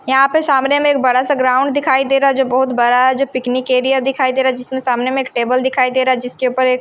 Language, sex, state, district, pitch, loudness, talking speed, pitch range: Hindi, female, Himachal Pradesh, Shimla, 260 Hz, -15 LUFS, 290 wpm, 255-270 Hz